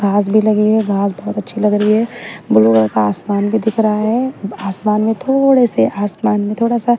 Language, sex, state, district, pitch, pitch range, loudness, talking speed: Hindi, female, Haryana, Jhajjar, 210 Hz, 200-225 Hz, -15 LUFS, 225 wpm